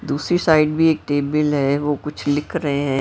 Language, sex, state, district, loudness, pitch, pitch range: Hindi, female, Maharashtra, Mumbai Suburban, -19 LUFS, 145 Hz, 145-155 Hz